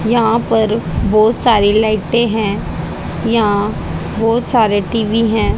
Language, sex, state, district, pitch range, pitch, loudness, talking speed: Hindi, female, Haryana, Rohtak, 215-230 Hz, 220 Hz, -15 LUFS, 120 wpm